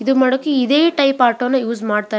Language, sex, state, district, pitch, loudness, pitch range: Kannada, female, Karnataka, Belgaum, 260 Hz, -16 LUFS, 230-275 Hz